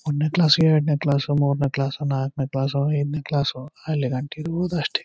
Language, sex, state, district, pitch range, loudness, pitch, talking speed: Kannada, male, Karnataka, Chamarajanagar, 140-155 Hz, -22 LUFS, 145 Hz, 190 wpm